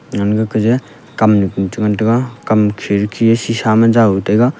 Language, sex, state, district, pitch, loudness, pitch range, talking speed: Wancho, male, Arunachal Pradesh, Longding, 110 Hz, -14 LUFS, 105-115 Hz, 170 wpm